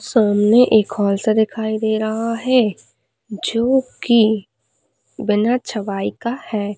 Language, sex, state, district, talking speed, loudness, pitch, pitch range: Hindi, female, Jharkhand, Sahebganj, 125 wpm, -18 LUFS, 220 Hz, 205-230 Hz